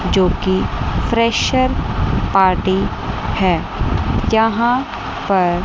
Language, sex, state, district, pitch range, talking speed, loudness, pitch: Hindi, female, Chandigarh, Chandigarh, 190-230 Hz, 75 wpm, -17 LUFS, 195 Hz